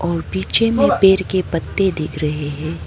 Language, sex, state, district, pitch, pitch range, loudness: Hindi, female, Arunachal Pradesh, Papum Pare, 150 Hz, 115-185 Hz, -17 LUFS